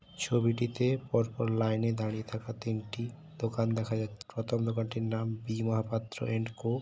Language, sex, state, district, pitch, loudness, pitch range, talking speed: Bengali, male, West Bengal, Paschim Medinipur, 115 Hz, -33 LUFS, 110-115 Hz, 150 wpm